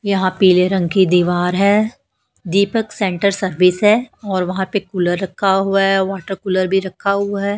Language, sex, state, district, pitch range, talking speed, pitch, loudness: Hindi, female, Haryana, Charkhi Dadri, 185-200 Hz, 180 wpm, 195 Hz, -16 LUFS